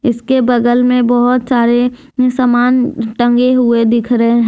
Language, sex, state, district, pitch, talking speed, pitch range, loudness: Hindi, female, Jharkhand, Deoghar, 245 Hz, 145 wpm, 235-250 Hz, -12 LUFS